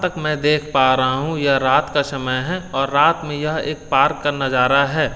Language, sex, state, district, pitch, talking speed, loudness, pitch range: Hindi, male, Delhi, New Delhi, 145 Hz, 235 wpm, -18 LUFS, 135-155 Hz